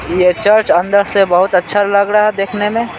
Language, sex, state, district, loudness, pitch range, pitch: Hindi, male, Bihar, Patna, -12 LUFS, 180-210 Hz, 200 Hz